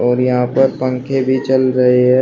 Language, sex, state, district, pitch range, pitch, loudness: Hindi, male, Uttar Pradesh, Shamli, 125-130 Hz, 130 Hz, -14 LUFS